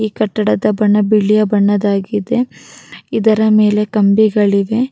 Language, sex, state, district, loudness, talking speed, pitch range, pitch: Kannada, female, Karnataka, Raichur, -14 LUFS, 110 wpm, 205-215 Hz, 210 Hz